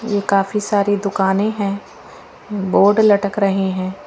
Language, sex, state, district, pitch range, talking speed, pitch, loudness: Hindi, female, Haryana, Charkhi Dadri, 195-205 Hz, 120 wpm, 200 Hz, -17 LUFS